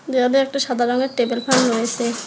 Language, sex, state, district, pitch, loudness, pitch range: Bengali, male, West Bengal, Alipurduar, 250 Hz, -19 LUFS, 240-265 Hz